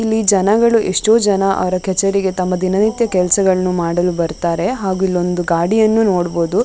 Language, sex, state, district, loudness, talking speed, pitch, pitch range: Kannada, female, Karnataka, Dakshina Kannada, -15 LUFS, 125 wpm, 190 Hz, 180-210 Hz